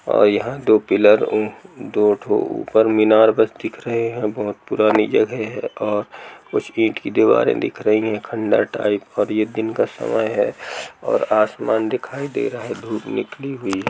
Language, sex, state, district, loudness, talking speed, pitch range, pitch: Hindi, male, Uttar Pradesh, Jalaun, -19 LUFS, 185 wpm, 105-110 Hz, 110 Hz